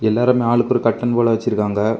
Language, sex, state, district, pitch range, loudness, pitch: Tamil, male, Tamil Nadu, Kanyakumari, 110-120 Hz, -17 LUFS, 115 Hz